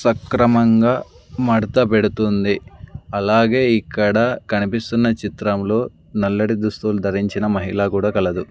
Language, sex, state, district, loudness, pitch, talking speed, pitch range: Telugu, male, Andhra Pradesh, Sri Satya Sai, -18 LUFS, 105 Hz, 90 wpm, 100-115 Hz